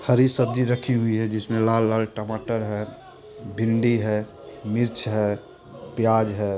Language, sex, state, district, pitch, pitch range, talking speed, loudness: Hindi, male, Bihar, Purnia, 110 Hz, 110-120 Hz, 135 wpm, -23 LUFS